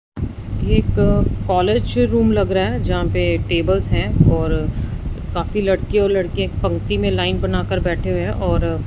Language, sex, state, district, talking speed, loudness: Hindi, male, Punjab, Fazilka, 160 wpm, -19 LUFS